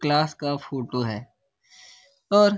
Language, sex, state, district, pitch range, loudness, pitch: Hindi, male, Bihar, Lakhisarai, 135-185 Hz, -25 LUFS, 150 Hz